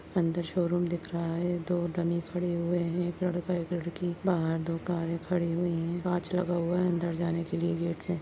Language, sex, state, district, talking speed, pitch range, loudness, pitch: Hindi, female, Uttar Pradesh, Deoria, 220 wpm, 170-175 Hz, -31 LUFS, 175 Hz